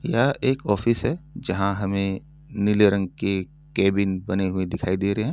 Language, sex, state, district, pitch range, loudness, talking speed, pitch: Hindi, male, Uttar Pradesh, Etah, 95-125 Hz, -23 LUFS, 180 wpm, 100 Hz